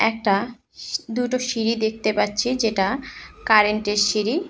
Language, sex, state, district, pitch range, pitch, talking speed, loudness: Bengali, female, West Bengal, Cooch Behar, 210-250 Hz, 225 Hz, 120 wpm, -21 LUFS